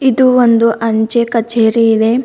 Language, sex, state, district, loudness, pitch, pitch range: Kannada, female, Karnataka, Bidar, -11 LUFS, 230 Hz, 225-240 Hz